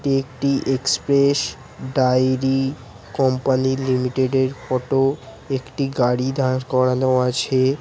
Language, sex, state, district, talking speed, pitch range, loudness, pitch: Bengali, male, West Bengal, Kolkata, 90 wpm, 130-135 Hz, -20 LUFS, 130 Hz